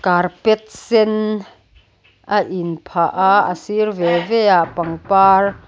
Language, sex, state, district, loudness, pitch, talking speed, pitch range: Mizo, female, Mizoram, Aizawl, -16 LUFS, 185 Hz, 125 wpm, 170-210 Hz